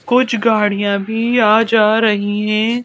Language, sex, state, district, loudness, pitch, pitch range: Hindi, female, Madhya Pradesh, Bhopal, -14 LUFS, 220 Hz, 210-230 Hz